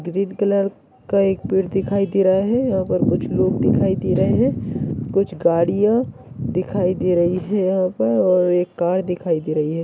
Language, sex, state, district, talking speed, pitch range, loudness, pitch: Hindi, male, Maharashtra, Solapur, 195 wpm, 175-195 Hz, -19 LUFS, 185 Hz